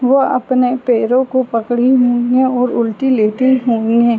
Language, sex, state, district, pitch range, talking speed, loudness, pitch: Hindi, female, Uttar Pradesh, Varanasi, 235-260 Hz, 170 wpm, -14 LUFS, 250 Hz